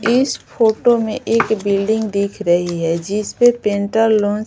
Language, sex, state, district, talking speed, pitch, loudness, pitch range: Hindi, female, Bihar, West Champaran, 175 wpm, 215 Hz, -17 LUFS, 200-225 Hz